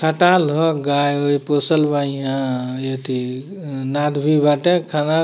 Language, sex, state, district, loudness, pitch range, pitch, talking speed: Bhojpuri, male, Bihar, Muzaffarpur, -18 LUFS, 135-160 Hz, 145 Hz, 160 wpm